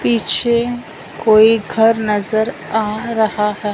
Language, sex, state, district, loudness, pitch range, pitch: Hindi, male, Punjab, Fazilka, -15 LUFS, 215-230 Hz, 220 Hz